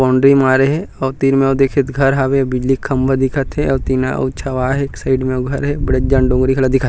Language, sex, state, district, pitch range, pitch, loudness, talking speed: Chhattisgarhi, male, Chhattisgarh, Rajnandgaon, 130-135 Hz, 135 Hz, -15 LUFS, 270 wpm